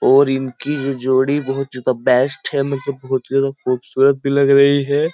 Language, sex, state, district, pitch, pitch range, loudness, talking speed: Hindi, male, Uttar Pradesh, Jyotiba Phule Nagar, 135 Hz, 130-140 Hz, -17 LUFS, 185 wpm